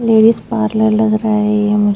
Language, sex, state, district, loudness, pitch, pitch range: Hindi, female, Goa, North and South Goa, -13 LUFS, 215 Hz, 210-220 Hz